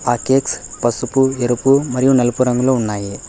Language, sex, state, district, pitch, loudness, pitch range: Telugu, male, Telangana, Hyderabad, 125 Hz, -16 LUFS, 120-130 Hz